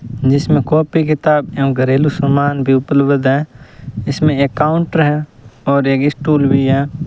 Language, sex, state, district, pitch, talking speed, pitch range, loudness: Hindi, male, Rajasthan, Bikaner, 140 Hz, 155 wpm, 135-150 Hz, -14 LUFS